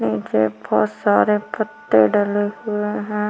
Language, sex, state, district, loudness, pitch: Hindi, female, Chhattisgarh, Korba, -19 LUFS, 205 Hz